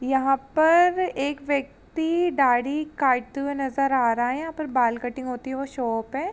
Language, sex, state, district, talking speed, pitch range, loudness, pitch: Hindi, female, Uttar Pradesh, Jalaun, 190 wpm, 250-305 Hz, -24 LUFS, 270 Hz